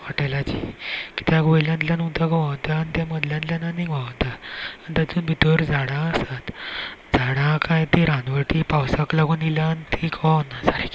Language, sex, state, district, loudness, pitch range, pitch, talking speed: Konkani, male, Goa, North and South Goa, -22 LUFS, 150-165 Hz, 160 Hz, 140 wpm